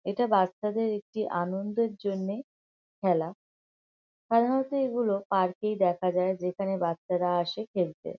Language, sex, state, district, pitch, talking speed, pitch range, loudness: Bengali, female, West Bengal, North 24 Parganas, 195 Hz, 115 wpm, 180-220 Hz, -29 LUFS